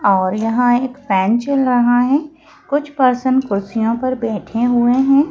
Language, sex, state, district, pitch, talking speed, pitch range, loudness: Hindi, female, Madhya Pradesh, Bhopal, 245 Hz, 160 wpm, 225-265 Hz, -16 LUFS